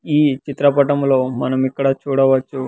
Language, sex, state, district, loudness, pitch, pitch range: Telugu, male, Andhra Pradesh, Sri Satya Sai, -17 LUFS, 135 Hz, 130-140 Hz